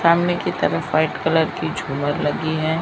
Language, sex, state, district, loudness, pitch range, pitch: Hindi, female, Maharashtra, Mumbai Suburban, -21 LUFS, 155-170 Hz, 160 Hz